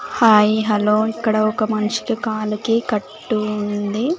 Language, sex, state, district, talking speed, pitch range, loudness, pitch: Telugu, female, Andhra Pradesh, Sri Satya Sai, 115 wpm, 210-220 Hz, -18 LUFS, 215 Hz